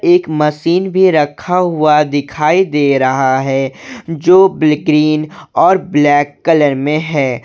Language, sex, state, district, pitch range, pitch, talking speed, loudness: Hindi, male, Jharkhand, Garhwa, 145-175 Hz, 150 Hz, 135 wpm, -12 LUFS